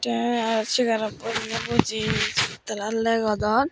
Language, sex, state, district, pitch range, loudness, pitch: Chakma, female, Tripura, Dhalai, 220-235 Hz, -24 LUFS, 225 Hz